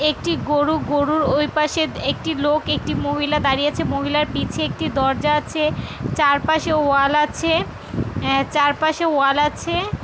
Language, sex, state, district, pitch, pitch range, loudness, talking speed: Bengali, female, West Bengal, Jhargram, 300 Hz, 285-310 Hz, -19 LUFS, 145 wpm